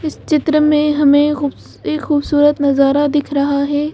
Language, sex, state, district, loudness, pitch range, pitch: Hindi, female, Madhya Pradesh, Bhopal, -14 LUFS, 285-300 Hz, 295 Hz